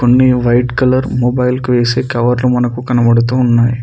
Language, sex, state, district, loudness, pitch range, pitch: Telugu, male, Telangana, Mahabubabad, -12 LUFS, 120-125 Hz, 125 Hz